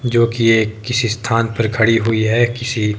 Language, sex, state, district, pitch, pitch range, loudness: Hindi, male, Himachal Pradesh, Shimla, 115 Hz, 110-120 Hz, -16 LUFS